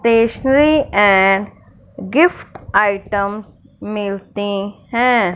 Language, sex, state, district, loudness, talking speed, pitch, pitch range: Hindi, female, Punjab, Fazilka, -16 LUFS, 65 wpm, 205 Hz, 200-240 Hz